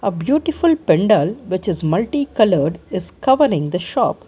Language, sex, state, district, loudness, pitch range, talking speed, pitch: English, female, Karnataka, Bangalore, -17 LUFS, 180-280 Hz, 155 wpm, 210 Hz